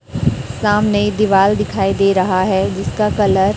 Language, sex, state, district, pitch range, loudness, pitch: Hindi, female, Chhattisgarh, Raipur, 185-205 Hz, -15 LUFS, 195 Hz